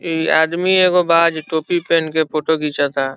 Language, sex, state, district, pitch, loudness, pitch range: Bhojpuri, male, Bihar, Saran, 160 Hz, -16 LUFS, 155-170 Hz